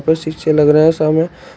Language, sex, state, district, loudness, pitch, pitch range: Hindi, male, Uttar Pradesh, Shamli, -13 LUFS, 155 Hz, 155-165 Hz